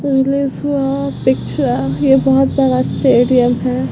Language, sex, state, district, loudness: Hindi, female, Bihar, Vaishali, -14 LUFS